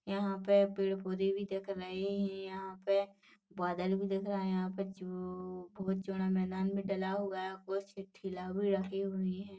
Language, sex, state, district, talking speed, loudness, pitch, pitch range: Hindi, female, Chhattisgarh, Rajnandgaon, 200 wpm, -36 LUFS, 195 Hz, 190-195 Hz